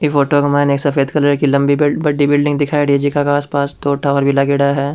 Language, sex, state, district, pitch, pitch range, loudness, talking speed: Rajasthani, male, Rajasthan, Churu, 145 Hz, 140-145 Hz, -14 LUFS, 255 wpm